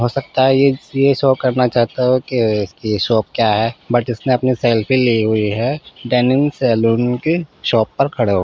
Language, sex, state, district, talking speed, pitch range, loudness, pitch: Hindi, male, Bihar, Patna, 200 wpm, 115-135 Hz, -16 LUFS, 125 Hz